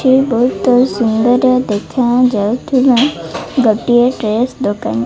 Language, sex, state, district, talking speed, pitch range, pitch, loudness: Odia, female, Odisha, Malkangiri, 95 wpm, 220-255 Hz, 245 Hz, -13 LUFS